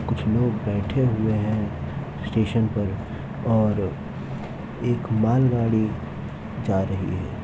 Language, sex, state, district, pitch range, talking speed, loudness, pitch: Hindi, male, Uttar Pradesh, Etah, 95-115 Hz, 105 wpm, -24 LUFS, 110 Hz